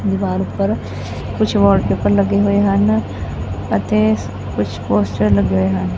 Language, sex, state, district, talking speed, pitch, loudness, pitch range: Punjabi, female, Punjab, Fazilka, 130 wpm, 100 Hz, -17 LUFS, 95-105 Hz